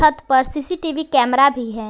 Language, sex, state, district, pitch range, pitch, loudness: Hindi, female, Jharkhand, Garhwa, 250-310 Hz, 275 Hz, -17 LUFS